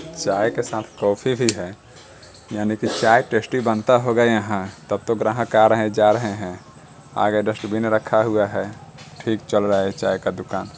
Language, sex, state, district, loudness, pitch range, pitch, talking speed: Hindi, male, Bihar, Saran, -20 LUFS, 100-115 Hz, 110 Hz, 195 wpm